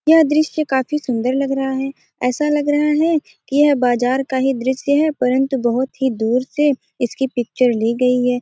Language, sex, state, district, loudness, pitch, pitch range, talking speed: Hindi, female, Bihar, Gopalganj, -18 LUFS, 265 Hz, 250-290 Hz, 190 wpm